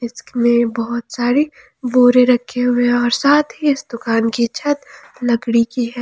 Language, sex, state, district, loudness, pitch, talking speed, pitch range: Hindi, female, Jharkhand, Palamu, -16 LUFS, 245 Hz, 170 wpm, 235-265 Hz